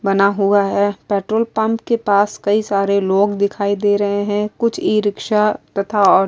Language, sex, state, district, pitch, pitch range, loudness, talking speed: Urdu, female, Uttar Pradesh, Budaun, 205 Hz, 200-210 Hz, -17 LUFS, 180 wpm